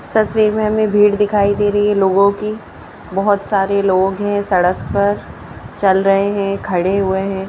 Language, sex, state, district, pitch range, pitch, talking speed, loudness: Hindi, male, Madhya Pradesh, Bhopal, 195-205 Hz, 200 Hz, 175 wpm, -15 LUFS